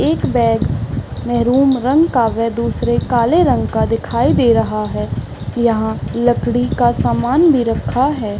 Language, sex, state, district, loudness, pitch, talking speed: Hindi, female, Chhattisgarh, Raigarh, -16 LUFS, 235 Hz, 150 wpm